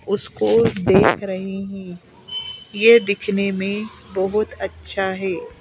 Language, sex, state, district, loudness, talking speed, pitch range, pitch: Hindi, female, Madhya Pradesh, Bhopal, -20 LUFS, 95 wpm, 190-210 Hz, 195 Hz